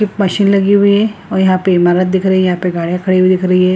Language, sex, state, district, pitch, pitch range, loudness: Hindi, female, Bihar, Lakhisarai, 185 Hz, 185-200 Hz, -12 LUFS